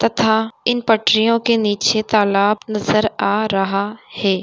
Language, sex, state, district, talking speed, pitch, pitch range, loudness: Hindi, female, Uttar Pradesh, Gorakhpur, 135 wpm, 215 Hz, 205-225 Hz, -17 LUFS